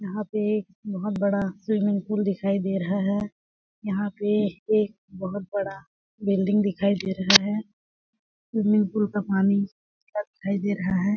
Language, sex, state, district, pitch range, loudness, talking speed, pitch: Hindi, female, Chhattisgarh, Balrampur, 195-210 Hz, -25 LUFS, 150 wpm, 200 Hz